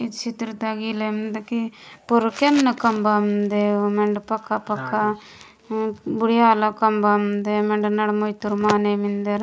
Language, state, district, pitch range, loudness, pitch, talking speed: Gondi, Chhattisgarh, Sukma, 210-225 Hz, -21 LUFS, 215 Hz, 110 wpm